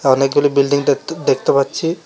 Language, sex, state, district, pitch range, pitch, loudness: Bengali, male, Tripura, West Tripura, 135-145 Hz, 140 Hz, -16 LUFS